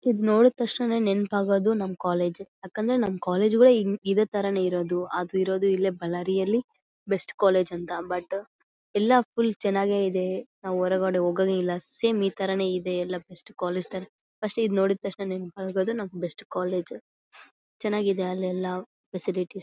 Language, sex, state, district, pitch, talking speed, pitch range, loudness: Kannada, female, Karnataka, Bellary, 190 Hz, 145 wpm, 180-205 Hz, -26 LUFS